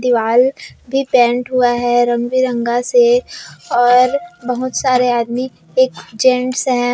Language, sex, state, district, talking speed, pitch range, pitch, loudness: Hindi, female, Bihar, Kishanganj, 130 wpm, 240-260 Hz, 250 Hz, -15 LUFS